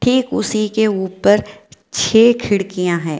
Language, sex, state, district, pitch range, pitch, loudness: Hindi, female, Bihar, Purnia, 190-220 Hz, 205 Hz, -16 LUFS